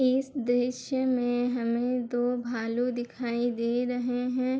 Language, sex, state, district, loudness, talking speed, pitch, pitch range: Hindi, female, Bihar, Bhagalpur, -29 LUFS, 130 wpm, 245 Hz, 240-250 Hz